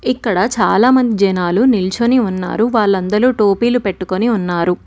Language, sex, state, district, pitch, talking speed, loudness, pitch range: Telugu, female, Telangana, Mahabubabad, 215 Hz, 110 wpm, -14 LUFS, 185-240 Hz